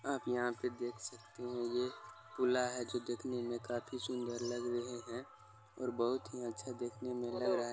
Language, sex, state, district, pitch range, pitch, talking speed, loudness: Maithili, male, Bihar, Supaul, 120-125 Hz, 120 Hz, 200 wpm, -40 LUFS